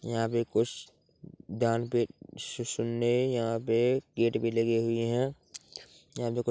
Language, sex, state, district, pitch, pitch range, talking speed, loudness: Hindi, male, Chhattisgarh, Korba, 115 Hz, 115-120 Hz, 145 wpm, -30 LUFS